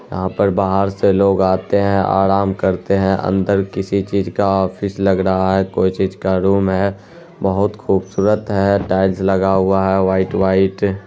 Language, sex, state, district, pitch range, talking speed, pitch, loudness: Hindi, male, Bihar, Araria, 95-100 Hz, 185 wpm, 95 Hz, -16 LUFS